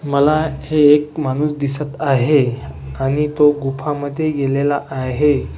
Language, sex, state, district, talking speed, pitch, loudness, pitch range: Marathi, male, Maharashtra, Washim, 120 wpm, 145 Hz, -17 LUFS, 135-150 Hz